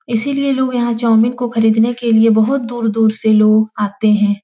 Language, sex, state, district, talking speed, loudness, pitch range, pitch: Hindi, female, Uttar Pradesh, Etah, 190 wpm, -14 LUFS, 220-245 Hz, 225 Hz